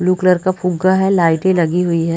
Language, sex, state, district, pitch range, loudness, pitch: Hindi, female, Bihar, Gopalganj, 170-185 Hz, -15 LUFS, 180 Hz